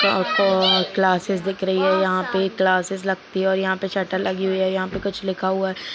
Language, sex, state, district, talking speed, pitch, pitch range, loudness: Hindi, male, Chhattisgarh, Kabirdham, 230 wpm, 190 Hz, 190-195 Hz, -21 LUFS